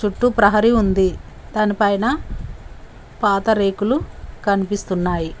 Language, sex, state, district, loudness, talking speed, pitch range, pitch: Telugu, female, Telangana, Mahabubabad, -18 LUFS, 80 wpm, 195-220 Hz, 205 Hz